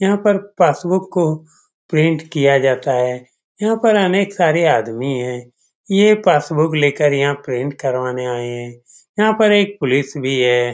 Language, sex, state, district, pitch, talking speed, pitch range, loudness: Hindi, male, Bihar, Saran, 150 Hz, 160 wpm, 125-190 Hz, -16 LUFS